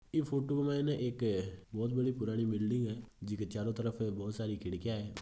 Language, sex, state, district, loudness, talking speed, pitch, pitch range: Hindi, male, Rajasthan, Nagaur, -36 LUFS, 150 wpm, 115 Hz, 105-125 Hz